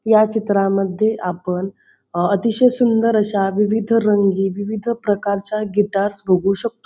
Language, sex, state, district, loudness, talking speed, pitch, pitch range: Marathi, female, Maharashtra, Pune, -18 LUFS, 115 wpm, 205 Hz, 195-220 Hz